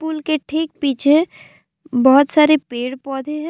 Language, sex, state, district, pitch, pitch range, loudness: Hindi, female, Assam, Kamrup Metropolitan, 300 Hz, 270-315 Hz, -17 LUFS